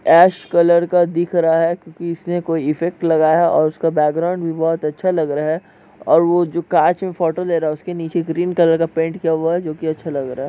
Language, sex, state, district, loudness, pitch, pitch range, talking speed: Hindi, male, Chhattisgarh, Balrampur, -17 LUFS, 165 Hz, 160-175 Hz, 250 wpm